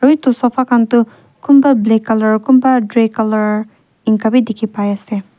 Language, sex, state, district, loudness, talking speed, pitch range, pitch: Nagamese, female, Nagaland, Kohima, -13 LUFS, 180 wpm, 215-255 Hz, 225 Hz